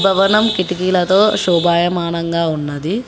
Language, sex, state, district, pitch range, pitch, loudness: Telugu, female, Telangana, Hyderabad, 170-195 Hz, 180 Hz, -15 LUFS